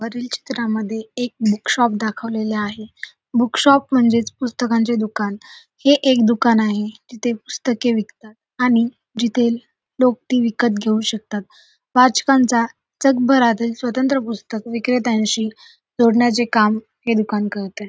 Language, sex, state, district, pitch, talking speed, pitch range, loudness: Marathi, female, Maharashtra, Solapur, 235 Hz, 120 wpm, 220-250 Hz, -18 LUFS